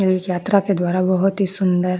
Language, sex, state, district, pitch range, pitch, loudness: Hindi, female, Uttar Pradesh, Jyotiba Phule Nagar, 180-195 Hz, 185 Hz, -19 LUFS